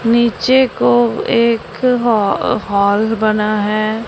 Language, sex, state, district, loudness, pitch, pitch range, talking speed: Hindi, female, Punjab, Pathankot, -14 LUFS, 220 Hz, 205-235 Hz, 105 wpm